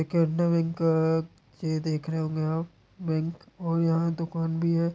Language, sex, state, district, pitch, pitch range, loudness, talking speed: Hindi, male, Bihar, Muzaffarpur, 165 Hz, 160-170 Hz, -28 LUFS, 180 wpm